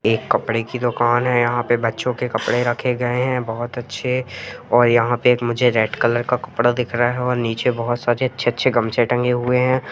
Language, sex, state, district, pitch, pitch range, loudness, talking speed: Hindi, male, Jharkhand, Jamtara, 120 Hz, 120-125 Hz, -19 LUFS, 225 wpm